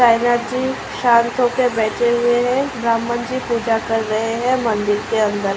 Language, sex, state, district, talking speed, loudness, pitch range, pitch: Hindi, female, Uttar Pradesh, Ghazipur, 185 wpm, -18 LUFS, 225-245 Hz, 235 Hz